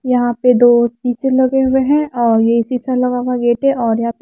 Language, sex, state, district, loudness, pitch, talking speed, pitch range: Hindi, female, Punjab, Kapurthala, -14 LUFS, 245 Hz, 230 wpm, 240-260 Hz